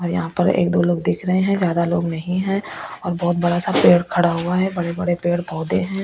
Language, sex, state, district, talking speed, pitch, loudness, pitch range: Hindi, female, Delhi, New Delhi, 240 wpm, 175 Hz, -19 LUFS, 170-180 Hz